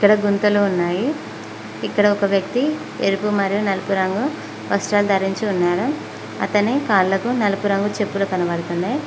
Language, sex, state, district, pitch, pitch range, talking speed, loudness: Telugu, female, Telangana, Mahabubabad, 200 Hz, 180-205 Hz, 125 wpm, -20 LUFS